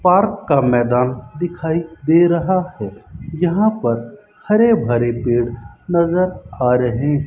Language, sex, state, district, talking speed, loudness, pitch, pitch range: Hindi, male, Rajasthan, Bikaner, 130 wpm, -17 LUFS, 150 Hz, 120-180 Hz